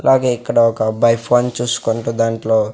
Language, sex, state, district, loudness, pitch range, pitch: Telugu, male, Andhra Pradesh, Sri Satya Sai, -16 LUFS, 115-120 Hz, 115 Hz